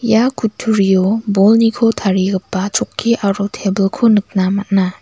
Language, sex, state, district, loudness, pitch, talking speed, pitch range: Garo, female, Meghalaya, West Garo Hills, -15 LUFS, 200 Hz, 110 wpm, 195-225 Hz